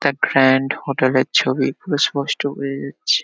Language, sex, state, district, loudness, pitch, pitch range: Bengali, male, West Bengal, Kolkata, -18 LUFS, 140 Hz, 130-140 Hz